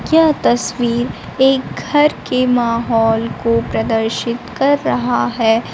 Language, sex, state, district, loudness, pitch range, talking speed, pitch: Hindi, female, Bihar, Kaimur, -16 LUFS, 225-265 Hz, 115 wpm, 235 Hz